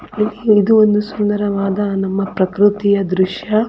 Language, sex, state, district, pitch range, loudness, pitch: Kannada, female, Karnataka, Chamarajanagar, 195-210 Hz, -15 LUFS, 205 Hz